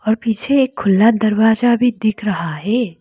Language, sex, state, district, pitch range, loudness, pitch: Hindi, female, Arunachal Pradesh, Lower Dibang Valley, 210-235 Hz, -16 LUFS, 220 Hz